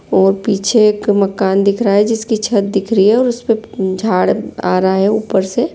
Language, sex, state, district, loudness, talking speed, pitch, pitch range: Hindi, female, Jharkhand, Sahebganj, -14 LUFS, 220 wpm, 205 Hz, 195-220 Hz